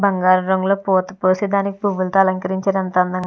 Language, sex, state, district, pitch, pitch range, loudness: Telugu, female, Andhra Pradesh, Visakhapatnam, 190 Hz, 185-195 Hz, -18 LUFS